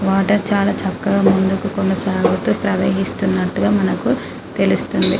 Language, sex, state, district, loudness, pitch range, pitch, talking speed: Telugu, female, Telangana, Karimnagar, -17 LUFS, 190-200 Hz, 195 Hz, 90 wpm